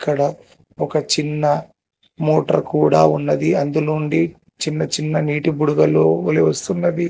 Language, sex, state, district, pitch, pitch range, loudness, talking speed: Telugu, male, Telangana, Hyderabad, 150 Hz, 145-165 Hz, -18 LUFS, 110 wpm